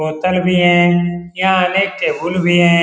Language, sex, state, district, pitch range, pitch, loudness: Hindi, male, Bihar, Lakhisarai, 175-185 Hz, 175 Hz, -14 LUFS